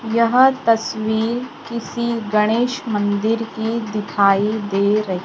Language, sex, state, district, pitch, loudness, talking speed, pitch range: Hindi, female, Maharashtra, Gondia, 225 Hz, -19 LUFS, 105 wpm, 210-235 Hz